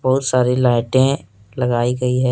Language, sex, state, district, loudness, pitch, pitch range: Hindi, male, Jharkhand, Deoghar, -17 LUFS, 125 Hz, 120-130 Hz